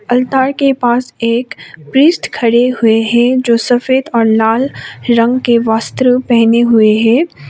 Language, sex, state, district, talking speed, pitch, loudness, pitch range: Hindi, female, Sikkim, Gangtok, 145 wpm, 240 Hz, -11 LUFS, 230-255 Hz